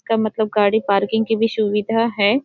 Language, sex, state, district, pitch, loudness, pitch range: Hindi, female, Jharkhand, Sahebganj, 220 Hz, -18 LUFS, 210-225 Hz